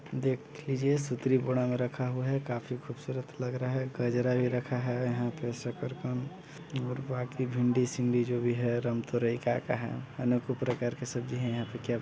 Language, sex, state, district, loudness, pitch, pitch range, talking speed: Hindi, male, Chhattisgarh, Balrampur, -32 LUFS, 125 Hz, 120-130 Hz, 170 wpm